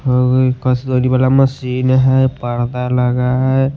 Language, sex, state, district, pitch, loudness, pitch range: Hindi, male, Bihar, West Champaran, 130 Hz, -14 LUFS, 125-130 Hz